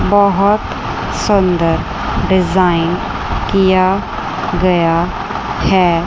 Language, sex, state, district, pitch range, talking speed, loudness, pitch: Hindi, female, Chandigarh, Chandigarh, 170-195 Hz, 60 wpm, -14 LUFS, 185 Hz